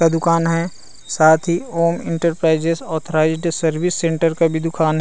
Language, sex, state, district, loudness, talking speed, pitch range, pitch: Chhattisgarhi, male, Chhattisgarh, Rajnandgaon, -18 LUFS, 155 wpm, 160-170 Hz, 165 Hz